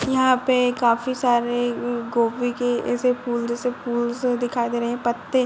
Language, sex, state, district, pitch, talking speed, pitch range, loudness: Hindi, female, Uttar Pradesh, Budaun, 245 Hz, 165 wpm, 240-250 Hz, -22 LUFS